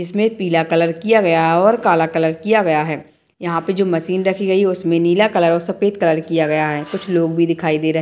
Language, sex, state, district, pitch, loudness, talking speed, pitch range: Hindi, female, Bihar, Madhepura, 170 Hz, -16 LUFS, 270 wpm, 160-195 Hz